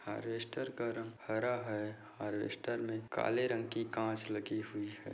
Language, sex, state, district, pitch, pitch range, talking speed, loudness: Hindi, male, Bihar, Bhagalpur, 115 Hz, 105-115 Hz, 165 wpm, -39 LUFS